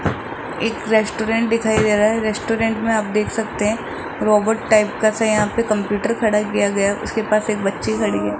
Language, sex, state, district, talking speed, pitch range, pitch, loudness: Hindi, male, Rajasthan, Jaipur, 205 wpm, 210-225 Hz, 215 Hz, -19 LUFS